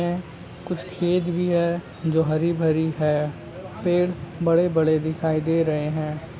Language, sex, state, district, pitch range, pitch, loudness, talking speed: Hindi, male, Maharashtra, Nagpur, 155-175 Hz, 165 Hz, -23 LUFS, 150 wpm